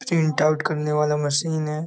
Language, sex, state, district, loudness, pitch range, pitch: Hindi, male, Bihar, East Champaran, -22 LUFS, 150-155 Hz, 155 Hz